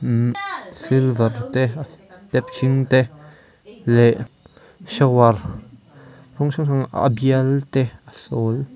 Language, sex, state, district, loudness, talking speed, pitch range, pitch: Mizo, male, Mizoram, Aizawl, -19 LUFS, 110 wpm, 120-140 Hz, 130 Hz